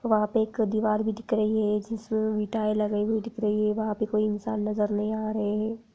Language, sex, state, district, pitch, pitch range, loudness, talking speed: Hindi, female, Bihar, Darbhanga, 215 Hz, 210-220 Hz, -27 LUFS, 240 wpm